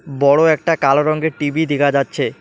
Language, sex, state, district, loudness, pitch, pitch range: Bengali, male, West Bengal, Alipurduar, -16 LUFS, 145 Hz, 140-160 Hz